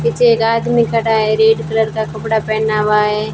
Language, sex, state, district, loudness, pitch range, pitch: Hindi, female, Rajasthan, Bikaner, -14 LUFS, 210-225 Hz, 220 Hz